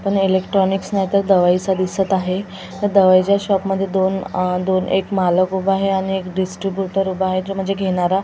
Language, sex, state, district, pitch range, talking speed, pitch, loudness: Marathi, female, Maharashtra, Gondia, 185-195 Hz, 180 wpm, 190 Hz, -18 LUFS